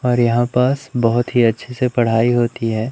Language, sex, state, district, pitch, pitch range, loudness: Hindi, male, Madhya Pradesh, Umaria, 120 Hz, 115-125 Hz, -17 LUFS